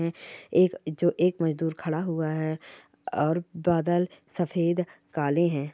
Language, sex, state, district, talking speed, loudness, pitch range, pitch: Hindi, female, Chhattisgarh, Bilaspur, 135 wpm, -27 LUFS, 155-175 Hz, 165 Hz